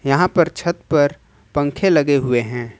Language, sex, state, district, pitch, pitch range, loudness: Hindi, male, Jharkhand, Ranchi, 145 Hz, 125-170 Hz, -18 LUFS